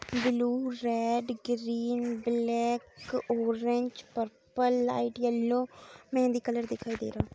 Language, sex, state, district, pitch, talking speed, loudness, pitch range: Hindi, female, Bihar, Saharsa, 240 Hz, 105 wpm, -31 LUFS, 235-245 Hz